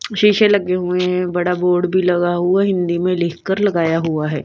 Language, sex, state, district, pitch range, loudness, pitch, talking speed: Hindi, female, Bihar, Patna, 175-185 Hz, -17 LUFS, 180 Hz, 200 wpm